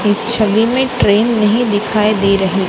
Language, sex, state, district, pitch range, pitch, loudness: Hindi, female, Gujarat, Gandhinagar, 205-230 Hz, 215 Hz, -13 LUFS